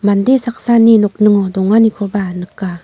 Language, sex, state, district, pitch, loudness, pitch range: Garo, female, Meghalaya, North Garo Hills, 205 Hz, -12 LUFS, 195-225 Hz